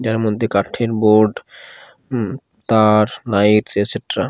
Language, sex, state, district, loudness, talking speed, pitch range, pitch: Bengali, male, Bihar, Katihar, -17 LUFS, 125 wpm, 105-115 Hz, 110 Hz